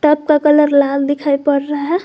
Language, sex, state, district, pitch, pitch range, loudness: Hindi, female, Jharkhand, Garhwa, 295 Hz, 280-300 Hz, -14 LUFS